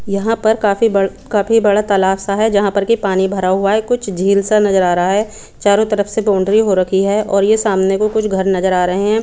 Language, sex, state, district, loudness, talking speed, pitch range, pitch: Hindi, female, Chandigarh, Chandigarh, -14 LUFS, 260 wpm, 195-215 Hz, 200 Hz